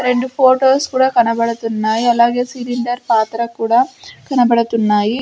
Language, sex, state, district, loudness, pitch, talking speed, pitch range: Telugu, female, Andhra Pradesh, Sri Satya Sai, -15 LUFS, 240 Hz, 105 wpm, 230-255 Hz